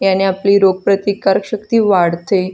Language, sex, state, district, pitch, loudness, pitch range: Marathi, female, Maharashtra, Solapur, 195 Hz, -14 LUFS, 190-200 Hz